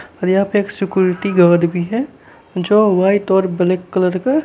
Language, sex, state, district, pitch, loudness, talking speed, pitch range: Hindi, male, Bihar, Kaimur, 190 Hz, -15 LUFS, 190 wpm, 180-205 Hz